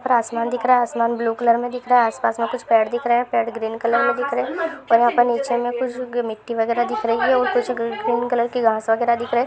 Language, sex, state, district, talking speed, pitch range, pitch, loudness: Hindi, female, Chhattisgarh, Jashpur, 295 wpm, 230-245 Hz, 240 Hz, -20 LUFS